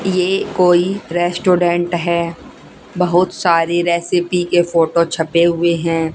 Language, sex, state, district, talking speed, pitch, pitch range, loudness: Hindi, female, Haryana, Jhajjar, 115 wpm, 175 Hz, 170-180 Hz, -16 LUFS